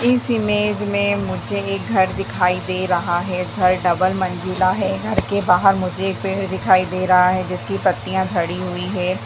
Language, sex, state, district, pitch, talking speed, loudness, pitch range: Hindi, female, Bihar, Darbhanga, 185 Hz, 195 wpm, -19 LUFS, 180-195 Hz